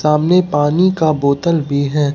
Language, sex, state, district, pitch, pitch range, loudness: Hindi, male, Bihar, Katihar, 150 Hz, 145-170 Hz, -14 LUFS